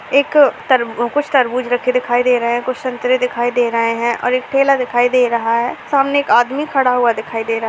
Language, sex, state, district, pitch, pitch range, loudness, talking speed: Hindi, female, Uttar Pradesh, Etah, 250 Hz, 235-265 Hz, -15 LUFS, 240 wpm